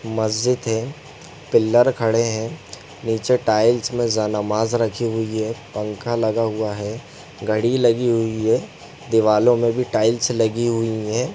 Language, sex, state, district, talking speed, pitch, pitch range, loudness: Hindi, male, Chhattisgarh, Sarguja, 145 wpm, 115 Hz, 110-120 Hz, -20 LUFS